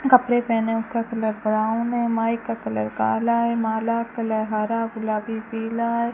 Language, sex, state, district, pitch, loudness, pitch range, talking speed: Hindi, female, Rajasthan, Bikaner, 225 Hz, -23 LUFS, 220-235 Hz, 165 wpm